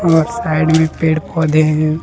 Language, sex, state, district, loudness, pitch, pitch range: Hindi, male, Jharkhand, Deoghar, -14 LUFS, 160 Hz, 155-160 Hz